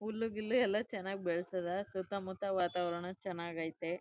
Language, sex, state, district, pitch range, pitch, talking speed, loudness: Kannada, female, Karnataka, Chamarajanagar, 175-200 Hz, 190 Hz, 120 wpm, -38 LUFS